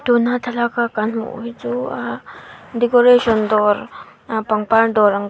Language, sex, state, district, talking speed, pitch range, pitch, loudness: Mizo, female, Mizoram, Aizawl, 170 wpm, 215-240 Hz, 235 Hz, -17 LUFS